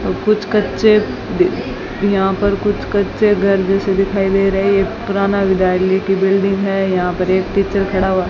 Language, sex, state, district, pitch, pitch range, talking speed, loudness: Hindi, female, Rajasthan, Bikaner, 195 Hz, 195-200 Hz, 180 wpm, -15 LUFS